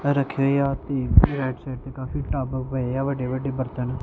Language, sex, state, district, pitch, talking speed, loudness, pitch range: Punjabi, male, Punjab, Kapurthala, 130 Hz, 210 wpm, -24 LUFS, 130-135 Hz